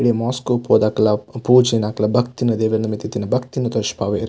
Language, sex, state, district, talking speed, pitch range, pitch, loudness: Tulu, male, Karnataka, Dakshina Kannada, 180 wpm, 105-125 Hz, 115 Hz, -18 LUFS